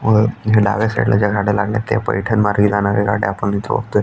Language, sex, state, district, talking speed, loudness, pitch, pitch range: Marathi, male, Maharashtra, Aurangabad, 210 wpm, -16 LUFS, 105 Hz, 100-110 Hz